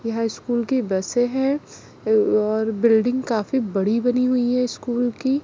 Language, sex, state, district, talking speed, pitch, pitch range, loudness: Hindi, female, Chhattisgarh, Kabirdham, 155 wpm, 240 Hz, 220-250 Hz, -21 LUFS